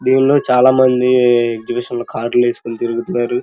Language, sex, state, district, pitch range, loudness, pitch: Telugu, male, Andhra Pradesh, Krishna, 120-125 Hz, -15 LUFS, 120 Hz